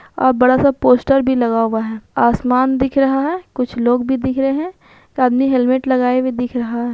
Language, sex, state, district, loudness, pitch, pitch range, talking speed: Hindi, female, Chhattisgarh, Raigarh, -16 LUFS, 255 Hz, 245-265 Hz, 215 wpm